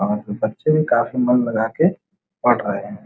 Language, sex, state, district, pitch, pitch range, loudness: Hindi, male, Uttar Pradesh, Muzaffarnagar, 155 Hz, 120-195 Hz, -19 LUFS